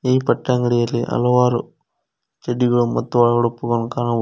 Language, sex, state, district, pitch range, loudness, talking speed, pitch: Kannada, male, Karnataka, Koppal, 120-125 Hz, -18 LUFS, 130 wpm, 120 Hz